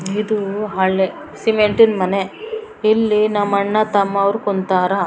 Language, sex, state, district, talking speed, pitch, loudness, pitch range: Kannada, female, Karnataka, Raichur, 105 wpm, 205 Hz, -17 LUFS, 195-215 Hz